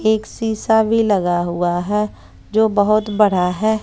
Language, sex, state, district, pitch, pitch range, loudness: Hindi, female, Bihar, West Champaran, 210 Hz, 185-220 Hz, -17 LUFS